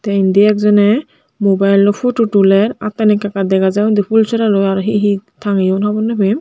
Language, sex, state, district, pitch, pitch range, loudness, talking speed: Chakma, male, Tripura, Unakoti, 205 Hz, 195-215 Hz, -13 LUFS, 215 wpm